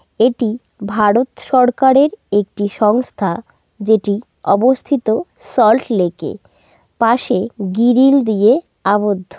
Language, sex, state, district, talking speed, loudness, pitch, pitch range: Bengali, female, West Bengal, North 24 Parganas, 85 wpm, -15 LUFS, 220 Hz, 205-250 Hz